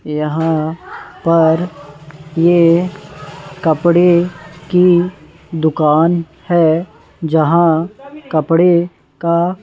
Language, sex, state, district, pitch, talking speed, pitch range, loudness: Hindi, male, Madhya Pradesh, Bhopal, 165 Hz, 60 wpm, 155-175 Hz, -14 LUFS